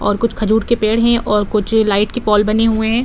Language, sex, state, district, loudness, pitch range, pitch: Hindi, female, Bihar, Saran, -15 LUFS, 210-230 Hz, 220 Hz